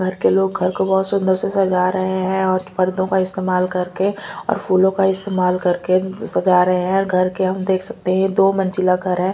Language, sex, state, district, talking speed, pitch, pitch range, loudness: Hindi, female, Delhi, New Delhi, 220 wpm, 185 Hz, 185-190 Hz, -18 LUFS